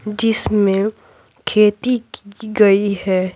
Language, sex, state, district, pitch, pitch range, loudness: Hindi, female, Bihar, Patna, 210 Hz, 195-215 Hz, -16 LUFS